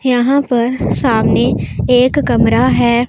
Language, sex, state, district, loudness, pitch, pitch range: Hindi, female, Punjab, Pathankot, -13 LUFS, 250 Hz, 240-260 Hz